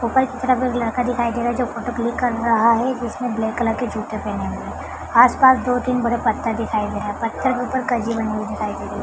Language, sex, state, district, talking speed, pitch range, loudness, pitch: Hindi, female, Bihar, Madhepura, 265 wpm, 225-250 Hz, -20 LUFS, 235 Hz